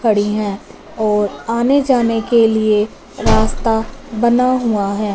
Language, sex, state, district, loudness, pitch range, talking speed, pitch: Hindi, female, Punjab, Fazilka, -16 LUFS, 210-235 Hz, 130 wpm, 220 Hz